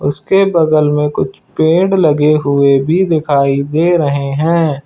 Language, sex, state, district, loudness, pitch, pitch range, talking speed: Hindi, male, Uttar Pradesh, Lucknow, -12 LUFS, 150 Hz, 140-165 Hz, 150 wpm